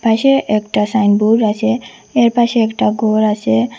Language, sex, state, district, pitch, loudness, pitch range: Bengali, female, Assam, Hailakandi, 220 Hz, -14 LUFS, 210-235 Hz